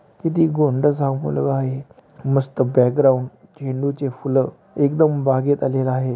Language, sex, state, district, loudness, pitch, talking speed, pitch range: Marathi, male, Maharashtra, Aurangabad, -19 LUFS, 135 Hz, 135 wpm, 130-145 Hz